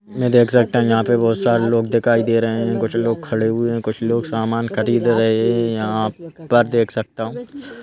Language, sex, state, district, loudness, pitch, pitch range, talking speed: Hindi, male, Madhya Pradesh, Bhopal, -18 LUFS, 115 Hz, 115-120 Hz, 220 wpm